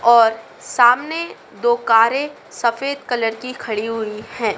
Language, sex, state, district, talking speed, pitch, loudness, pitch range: Hindi, female, Madhya Pradesh, Dhar, 130 wpm, 235 Hz, -18 LUFS, 225-255 Hz